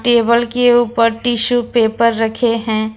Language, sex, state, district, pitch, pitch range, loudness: Hindi, female, Jharkhand, Ranchi, 235 Hz, 230-240 Hz, -14 LUFS